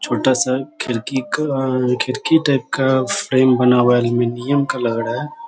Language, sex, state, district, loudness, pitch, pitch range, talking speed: Hindi, male, Bihar, Sitamarhi, -17 LUFS, 130 Hz, 125-140 Hz, 175 wpm